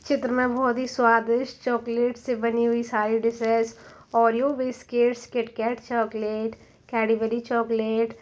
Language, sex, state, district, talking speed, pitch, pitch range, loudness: Hindi, female, Uttar Pradesh, Varanasi, 130 wpm, 235 Hz, 230-245 Hz, -25 LUFS